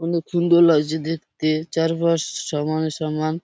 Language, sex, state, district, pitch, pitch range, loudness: Bengali, male, West Bengal, Purulia, 160 Hz, 155-170 Hz, -21 LUFS